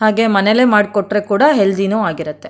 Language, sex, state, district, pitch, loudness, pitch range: Kannada, female, Karnataka, Mysore, 210 Hz, -14 LUFS, 195-220 Hz